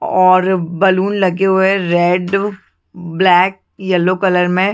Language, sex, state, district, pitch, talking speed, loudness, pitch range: Hindi, female, Chhattisgarh, Bilaspur, 185 Hz, 125 wpm, -14 LUFS, 180-190 Hz